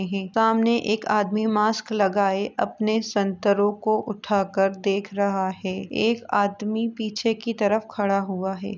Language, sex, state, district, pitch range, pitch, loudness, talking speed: Hindi, female, Uttar Pradesh, Etah, 195-220 Hz, 210 Hz, -23 LUFS, 145 wpm